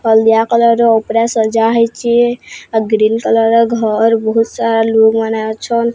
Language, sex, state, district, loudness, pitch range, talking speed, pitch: Odia, female, Odisha, Sambalpur, -12 LUFS, 220-235 Hz, 150 wpm, 225 Hz